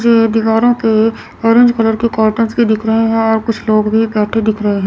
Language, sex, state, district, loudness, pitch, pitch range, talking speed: Hindi, female, Chandigarh, Chandigarh, -13 LUFS, 225 Hz, 220-230 Hz, 235 wpm